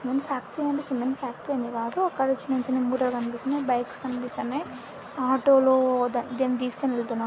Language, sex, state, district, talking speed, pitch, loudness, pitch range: Telugu, female, Andhra Pradesh, Anantapur, 155 wpm, 255 Hz, -26 LUFS, 245-270 Hz